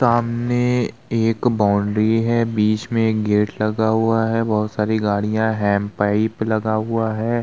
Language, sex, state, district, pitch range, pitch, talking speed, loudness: Hindi, male, Uttar Pradesh, Budaun, 105-115 Hz, 110 Hz, 155 wpm, -19 LUFS